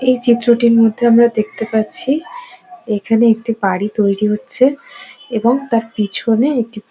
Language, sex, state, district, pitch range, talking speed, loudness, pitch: Bengali, female, West Bengal, Dakshin Dinajpur, 215-245 Hz, 140 wpm, -15 LUFS, 230 Hz